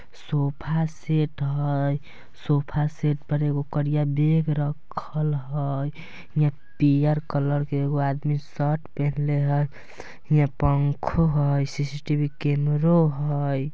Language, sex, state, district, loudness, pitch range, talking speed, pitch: Bajjika, male, Bihar, Vaishali, -24 LUFS, 145-150 Hz, 115 wpm, 145 Hz